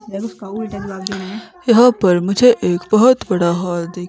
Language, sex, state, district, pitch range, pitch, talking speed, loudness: Hindi, female, Himachal Pradesh, Shimla, 180-225 Hz, 195 Hz, 115 wpm, -15 LUFS